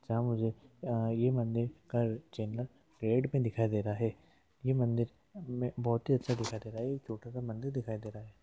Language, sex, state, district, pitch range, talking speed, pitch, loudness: Hindi, male, Uttar Pradesh, Deoria, 110-125 Hz, 185 wpm, 120 Hz, -35 LUFS